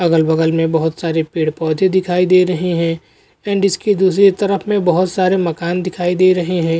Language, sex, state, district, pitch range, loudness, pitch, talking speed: Hindi, male, Bihar, Araria, 165-185 Hz, -15 LUFS, 180 Hz, 185 wpm